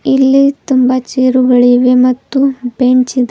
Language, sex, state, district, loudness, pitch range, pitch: Kannada, female, Karnataka, Bidar, -10 LUFS, 250-270 Hz, 255 Hz